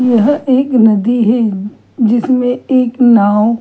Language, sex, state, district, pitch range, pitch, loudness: Hindi, female, Chhattisgarh, Kabirdham, 225-255 Hz, 235 Hz, -11 LUFS